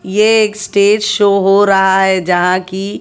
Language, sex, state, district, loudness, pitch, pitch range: Hindi, female, Haryana, Jhajjar, -11 LUFS, 195 Hz, 190-210 Hz